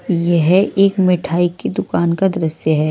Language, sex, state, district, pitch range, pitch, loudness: Hindi, male, Odisha, Malkangiri, 170-190 Hz, 175 Hz, -16 LUFS